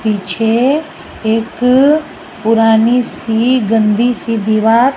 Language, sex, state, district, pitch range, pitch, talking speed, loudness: Hindi, female, Rajasthan, Jaipur, 220-250 Hz, 225 Hz, 85 wpm, -13 LUFS